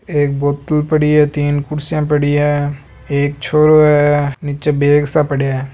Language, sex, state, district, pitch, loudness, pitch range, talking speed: Marwari, male, Rajasthan, Nagaur, 145 Hz, -14 LUFS, 145-150 Hz, 165 wpm